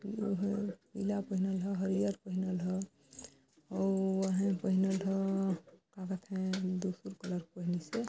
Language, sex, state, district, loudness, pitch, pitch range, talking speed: Chhattisgarhi, female, Chhattisgarh, Balrampur, -35 LUFS, 190 Hz, 185-195 Hz, 120 wpm